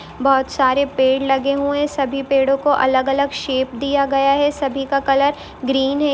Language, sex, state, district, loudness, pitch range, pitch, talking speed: Hindi, female, Jharkhand, Jamtara, -18 LUFS, 270-280 Hz, 275 Hz, 195 wpm